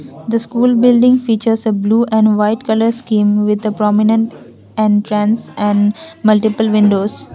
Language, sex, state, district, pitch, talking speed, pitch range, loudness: English, female, Assam, Kamrup Metropolitan, 215 Hz, 140 wpm, 210-225 Hz, -14 LUFS